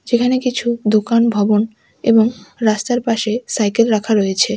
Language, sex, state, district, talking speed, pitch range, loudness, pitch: Bengali, female, West Bengal, Alipurduar, 130 wpm, 215-240 Hz, -16 LUFS, 230 Hz